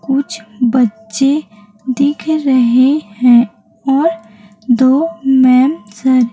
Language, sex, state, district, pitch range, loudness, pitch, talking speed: Hindi, female, Chhattisgarh, Raipur, 220-275 Hz, -13 LUFS, 255 Hz, 95 wpm